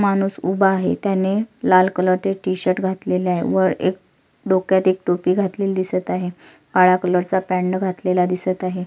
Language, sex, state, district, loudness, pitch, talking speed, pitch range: Marathi, female, Maharashtra, Solapur, -19 LUFS, 185 Hz, 155 wpm, 185-190 Hz